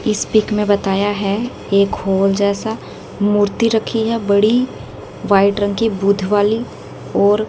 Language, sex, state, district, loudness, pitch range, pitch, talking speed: Hindi, female, Haryana, Jhajjar, -16 LUFS, 200-220 Hz, 205 Hz, 145 wpm